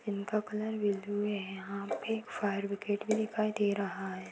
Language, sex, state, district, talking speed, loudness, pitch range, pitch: Kumaoni, female, Uttarakhand, Uttarkashi, 180 wpm, -34 LUFS, 200-215 Hz, 205 Hz